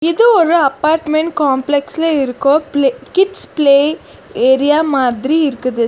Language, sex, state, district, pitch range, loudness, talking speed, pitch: Tamil, female, Karnataka, Bangalore, 270-320 Hz, -13 LUFS, 120 wpm, 290 Hz